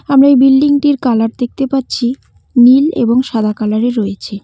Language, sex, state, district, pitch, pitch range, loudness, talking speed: Bengali, female, West Bengal, Cooch Behar, 245 Hz, 225-270 Hz, -12 LUFS, 175 wpm